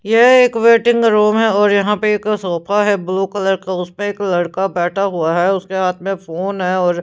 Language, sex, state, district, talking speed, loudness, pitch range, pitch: Hindi, female, Punjab, Pathankot, 230 wpm, -15 LUFS, 180-210 Hz, 195 Hz